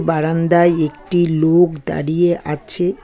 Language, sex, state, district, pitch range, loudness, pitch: Bengali, female, West Bengal, Alipurduar, 155-175 Hz, -16 LUFS, 165 Hz